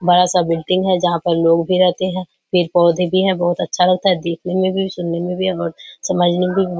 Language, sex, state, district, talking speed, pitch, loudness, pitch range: Hindi, female, Bihar, Kishanganj, 255 wpm, 180 Hz, -17 LUFS, 175-185 Hz